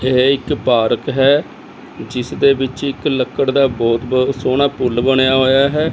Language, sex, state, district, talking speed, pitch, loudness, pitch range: Punjabi, male, Chandigarh, Chandigarh, 160 wpm, 130 Hz, -15 LUFS, 130-140 Hz